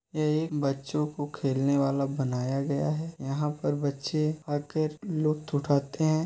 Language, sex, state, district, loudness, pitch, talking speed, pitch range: Hindi, male, Uttar Pradesh, Muzaffarnagar, -29 LUFS, 145 Hz, 135 wpm, 140-155 Hz